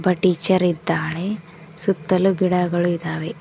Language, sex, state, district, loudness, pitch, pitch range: Kannada, female, Karnataka, Koppal, -19 LUFS, 180 Hz, 170-185 Hz